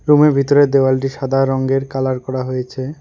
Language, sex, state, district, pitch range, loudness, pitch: Bengali, male, West Bengal, Alipurduar, 130-140 Hz, -16 LUFS, 135 Hz